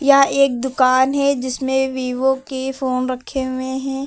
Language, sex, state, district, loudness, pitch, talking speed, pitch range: Hindi, female, Uttar Pradesh, Lucknow, -18 LUFS, 265 Hz, 160 wpm, 255-270 Hz